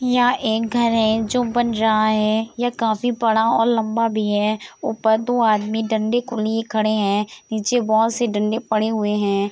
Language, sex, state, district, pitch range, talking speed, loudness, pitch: Hindi, female, Uttar Pradesh, Deoria, 215-235 Hz, 190 wpm, -20 LUFS, 220 Hz